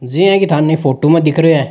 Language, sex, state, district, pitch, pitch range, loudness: Rajasthani, male, Rajasthan, Nagaur, 160 Hz, 150-165 Hz, -12 LUFS